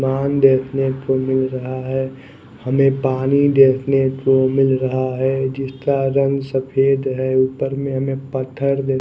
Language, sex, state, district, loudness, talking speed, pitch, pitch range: Hindi, male, Odisha, Khordha, -18 LUFS, 140 wpm, 135 Hz, 130-135 Hz